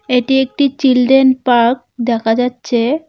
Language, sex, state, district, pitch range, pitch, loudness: Bengali, female, West Bengal, Cooch Behar, 240-265 Hz, 250 Hz, -13 LUFS